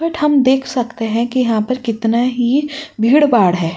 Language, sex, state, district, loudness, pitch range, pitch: Hindi, female, Uttar Pradesh, Jyotiba Phule Nagar, -15 LUFS, 230-280 Hz, 245 Hz